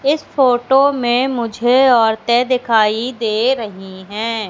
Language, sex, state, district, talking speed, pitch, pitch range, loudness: Hindi, female, Madhya Pradesh, Katni, 120 wpm, 240 Hz, 220-255 Hz, -15 LUFS